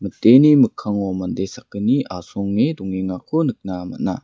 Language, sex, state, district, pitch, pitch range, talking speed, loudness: Garo, male, Meghalaya, West Garo Hills, 100 Hz, 95-125 Hz, 100 wpm, -19 LUFS